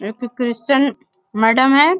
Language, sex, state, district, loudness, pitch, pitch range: Hindi, female, Bihar, Bhagalpur, -16 LUFS, 245 Hz, 220-275 Hz